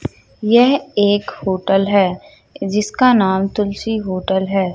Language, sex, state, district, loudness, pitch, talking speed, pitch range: Hindi, female, Madhya Pradesh, Katni, -16 LUFS, 200 Hz, 115 wpm, 190-215 Hz